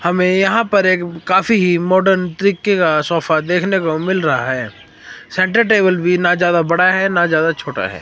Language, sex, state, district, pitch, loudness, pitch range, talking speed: Hindi, male, Himachal Pradesh, Shimla, 180 Hz, -15 LUFS, 165-190 Hz, 195 wpm